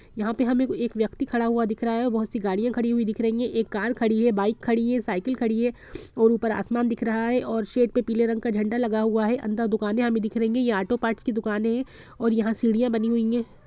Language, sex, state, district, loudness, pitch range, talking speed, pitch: Hindi, female, Bihar, Gopalganj, -24 LUFS, 225-240 Hz, 260 wpm, 230 Hz